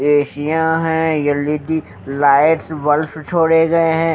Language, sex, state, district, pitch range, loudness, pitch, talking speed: Hindi, male, Maharashtra, Mumbai Suburban, 145-160 Hz, -16 LUFS, 155 Hz, 115 wpm